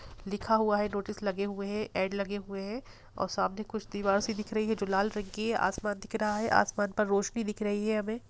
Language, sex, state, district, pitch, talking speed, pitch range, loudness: Hindi, female, Bihar, Gopalganj, 210 Hz, 230 wpm, 200-215 Hz, -31 LUFS